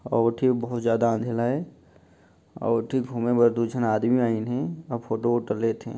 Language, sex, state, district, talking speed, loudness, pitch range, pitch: Chhattisgarhi, male, Chhattisgarh, Jashpur, 180 wpm, -25 LUFS, 115-120 Hz, 115 Hz